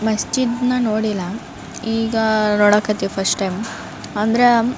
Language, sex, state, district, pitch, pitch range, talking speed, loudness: Kannada, female, Karnataka, Raichur, 220 Hz, 210-230 Hz, 115 wpm, -18 LUFS